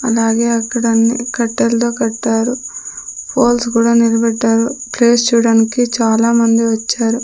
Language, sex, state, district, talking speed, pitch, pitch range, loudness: Telugu, female, Andhra Pradesh, Sri Satya Sai, 90 wpm, 230 Hz, 230-240 Hz, -14 LUFS